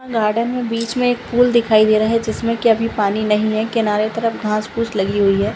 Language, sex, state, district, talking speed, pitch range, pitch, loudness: Hindi, female, Bihar, Madhepura, 250 wpm, 215-230 Hz, 225 Hz, -17 LUFS